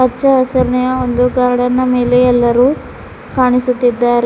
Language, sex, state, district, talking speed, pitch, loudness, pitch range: Kannada, female, Karnataka, Bidar, 100 wpm, 250 Hz, -13 LUFS, 245-255 Hz